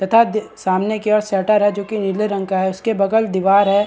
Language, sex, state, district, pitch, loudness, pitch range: Hindi, male, Chhattisgarh, Bastar, 205 Hz, -17 LUFS, 195-215 Hz